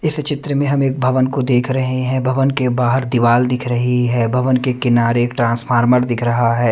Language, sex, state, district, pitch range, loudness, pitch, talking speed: Hindi, male, Chhattisgarh, Raipur, 120-130 Hz, -16 LUFS, 125 Hz, 225 wpm